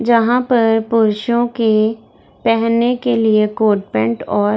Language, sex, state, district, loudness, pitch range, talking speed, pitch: Hindi, female, Bihar, Darbhanga, -15 LUFS, 215-235 Hz, 145 wpm, 225 Hz